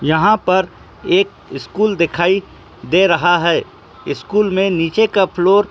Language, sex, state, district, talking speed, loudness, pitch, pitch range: Hindi, male, Uttar Pradesh, Muzaffarnagar, 145 wpm, -15 LUFS, 190 Hz, 175-210 Hz